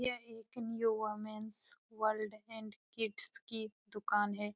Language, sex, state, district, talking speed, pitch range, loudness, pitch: Hindi, female, Bihar, Supaul, 130 wpm, 215-225 Hz, -39 LUFS, 220 Hz